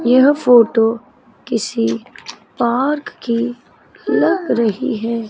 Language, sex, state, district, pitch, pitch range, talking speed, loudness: Hindi, female, Chandigarh, Chandigarh, 235 Hz, 230-255 Hz, 90 wpm, -16 LUFS